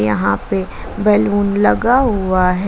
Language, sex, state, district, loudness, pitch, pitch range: Hindi, female, Jharkhand, Garhwa, -15 LUFS, 200 Hz, 185-210 Hz